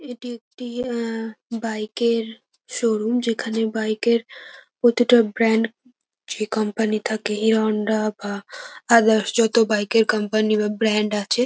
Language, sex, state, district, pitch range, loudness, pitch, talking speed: Bengali, female, West Bengal, North 24 Parganas, 215-235 Hz, -21 LUFS, 225 Hz, 130 wpm